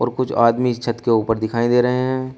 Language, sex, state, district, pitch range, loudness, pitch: Hindi, male, Uttar Pradesh, Shamli, 115-125 Hz, -18 LUFS, 120 Hz